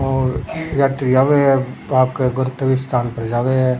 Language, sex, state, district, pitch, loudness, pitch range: Rajasthani, male, Rajasthan, Churu, 130 Hz, -18 LUFS, 130-135 Hz